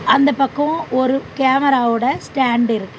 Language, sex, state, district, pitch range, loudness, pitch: Tamil, female, Tamil Nadu, Chennai, 240-275 Hz, -17 LUFS, 265 Hz